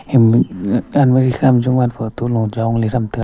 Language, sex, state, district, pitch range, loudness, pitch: Wancho, male, Arunachal Pradesh, Longding, 115-130 Hz, -15 LUFS, 120 Hz